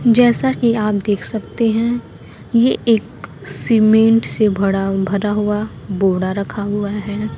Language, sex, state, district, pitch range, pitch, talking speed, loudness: Hindi, female, Bihar, Kaimur, 200-230 Hz, 210 Hz, 140 wpm, -16 LUFS